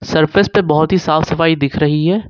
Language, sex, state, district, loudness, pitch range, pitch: Hindi, male, Jharkhand, Ranchi, -14 LUFS, 155-185 Hz, 160 Hz